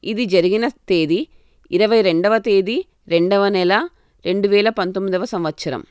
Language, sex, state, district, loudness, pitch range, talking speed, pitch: Telugu, female, Telangana, Karimnagar, -18 LUFS, 185-230 Hz, 110 wpm, 205 Hz